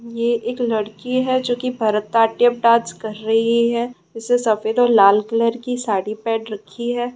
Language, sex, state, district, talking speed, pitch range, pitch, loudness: Hindi, female, Bihar, Gaya, 175 wpm, 220-245 Hz, 230 Hz, -18 LUFS